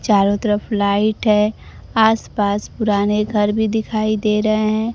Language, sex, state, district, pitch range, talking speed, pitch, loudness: Hindi, female, Bihar, Kaimur, 205-220 Hz, 155 wpm, 215 Hz, -18 LUFS